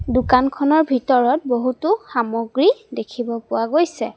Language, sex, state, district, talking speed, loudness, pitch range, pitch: Assamese, female, Assam, Sonitpur, 100 wpm, -19 LUFS, 240-305 Hz, 255 Hz